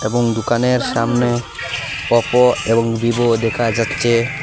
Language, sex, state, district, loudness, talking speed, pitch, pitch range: Bengali, male, Assam, Hailakandi, -17 LUFS, 110 wpm, 120 Hz, 115-120 Hz